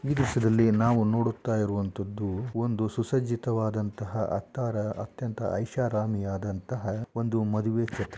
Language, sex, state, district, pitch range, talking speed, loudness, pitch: Kannada, male, Karnataka, Shimoga, 105-120 Hz, 105 wpm, -29 LUFS, 110 Hz